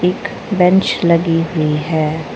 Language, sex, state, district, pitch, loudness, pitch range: Hindi, female, Arunachal Pradesh, Lower Dibang Valley, 165 Hz, -15 LUFS, 155-180 Hz